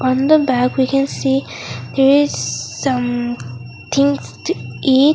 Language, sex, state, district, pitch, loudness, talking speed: English, female, Mizoram, Aizawl, 240 Hz, -17 LUFS, 140 wpm